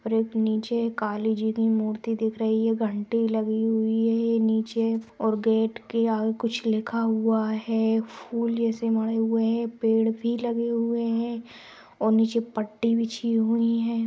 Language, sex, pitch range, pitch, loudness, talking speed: Magahi, female, 220-230 Hz, 225 Hz, -25 LUFS, 165 wpm